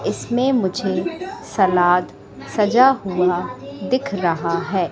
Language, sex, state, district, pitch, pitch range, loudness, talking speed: Hindi, female, Madhya Pradesh, Katni, 185 Hz, 170-245 Hz, -19 LUFS, 100 wpm